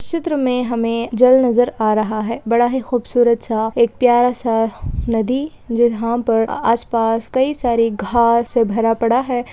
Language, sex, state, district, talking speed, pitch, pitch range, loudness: Hindi, female, Chhattisgarh, Balrampur, 185 wpm, 235 Hz, 230-245 Hz, -17 LUFS